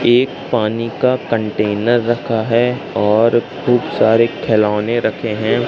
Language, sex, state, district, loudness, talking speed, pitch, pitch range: Hindi, male, Madhya Pradesh, Katni, -16 LUFS, 125 wpm, 115 Hz, 110-120 Hz